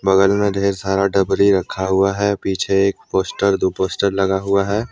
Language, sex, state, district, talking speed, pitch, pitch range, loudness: Hindi, male, Jharkhand, Deoghar, 205 wpm, 100 Hz, 95-100 Hz, -18 LUFS